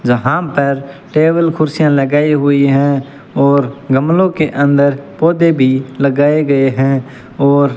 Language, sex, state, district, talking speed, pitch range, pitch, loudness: Hindi, male, Rajasthan, Bikaner, 140 wpm, 135-155 Hz, 140 Hz, -13 LUFS